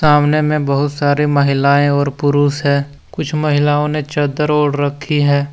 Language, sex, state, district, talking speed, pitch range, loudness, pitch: Hindi, male, Jharkhand, Deoghar, 165 wpm, 140-150 Hz, -15 LUFS, 145 Hz